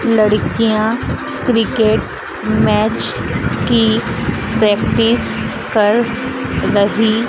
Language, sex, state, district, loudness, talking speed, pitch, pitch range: Hindi, female, Madhya Pradesh, Dhar, -15 LUFS, 60 wpm, 225 Hz, 215-230 Hz